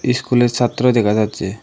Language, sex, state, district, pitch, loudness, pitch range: Bengali, male, Tripura, Dhalai, 120 Hz, -16 LUFS, 110-125 Hz